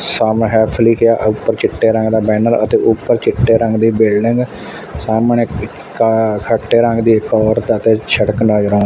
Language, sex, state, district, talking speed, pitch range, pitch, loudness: Punjabi, male, Punjab, Fazilka, 170 wpm, 110-115 Hz, 110 Hz, -13 LUFS